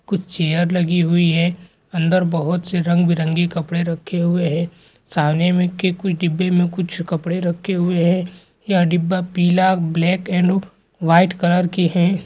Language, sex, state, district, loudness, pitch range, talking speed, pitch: Hindi, male, Chhattisgarh, Rajnandgaon, -18 LUFS, 170-180 Hz, 170 wpm, 175 Hz